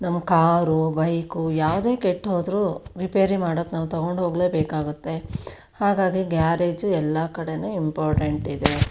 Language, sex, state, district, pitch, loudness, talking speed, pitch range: Kannada, female, Karnataka, Shimoga, 170 Hz, -23 LUFS, 115 wpm, 160-185 Hz